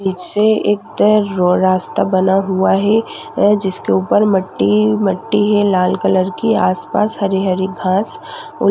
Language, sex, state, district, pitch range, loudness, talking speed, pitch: Hindi, female, Uttarakhand, Tehri Garhwal, 185-210 Hz, -15 LUFS, 150 wpm, 190 Hz